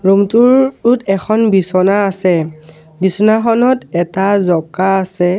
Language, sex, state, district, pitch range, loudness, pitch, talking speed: Assamese, male, Assam, Sonitpur, 180-220 Hz, -13 LUFS, 195 Hz, 110 wpm